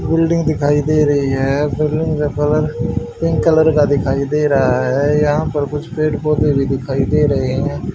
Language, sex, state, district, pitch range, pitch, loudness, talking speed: Hindi, male, Haryana, Rohtak, 135-155 Hz, 145 Hz, -16 LUFS, 190 wpm